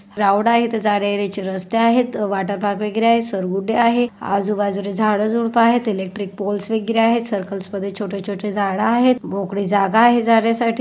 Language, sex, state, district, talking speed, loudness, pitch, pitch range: Marathi, female, Maharashtra, Solapur, 170 wpm, -18 LUFS, 210 Hz, 200-230 Hz